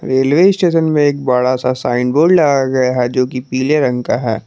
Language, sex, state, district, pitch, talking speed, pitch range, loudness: Hindi, male, Jharkhand, Garhwa, 130 Hz, 230 wpm, 125-150 Hz, -14 LUFS